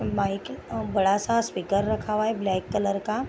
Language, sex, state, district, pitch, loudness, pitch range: Hindi, female, Bihar, Gopalganj, 205 Hz, -26 LUFS, 195-215 Hz